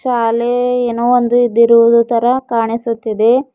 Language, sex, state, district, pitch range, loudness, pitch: Kannada, female, Karnataka, Bidar, 230-245 Hz, -13 LUFS, 235 Hz